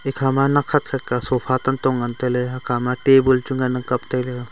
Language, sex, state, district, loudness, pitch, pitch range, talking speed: Wancho, male, Arunachal Pradesh, Longding, -20 LUFS, 130 Hz, 125-135 Hz, 160 wpm